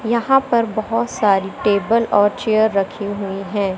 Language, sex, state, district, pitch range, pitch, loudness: Hindi, female, Madhya Pradesh, Katni, 200-230 Hz, 210 Hz, -18 LUFS